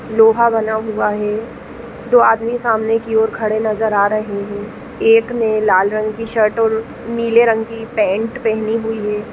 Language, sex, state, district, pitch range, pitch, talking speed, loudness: Hindi, female, Chhattisgarh, Raigarh, 215-230 Hz, 225 Hz, 180 wpm, -16 LUFS